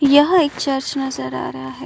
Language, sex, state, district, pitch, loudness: Hindi, female, Uttar Pradesh, Muzaffarnagar, 270 Hz, -19 LUFS